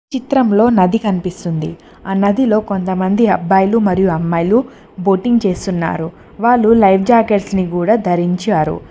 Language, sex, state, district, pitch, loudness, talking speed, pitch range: Telugu, female, Telangana, Mahabubabad, 195 Hz, -14 LUFS, 115 wpm, 180-225 Hz